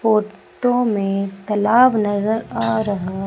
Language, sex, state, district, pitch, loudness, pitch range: Hindi, female, Madhya Pradesh, Umaria, 210 Hz, -18 LUFS, 195-220 Hz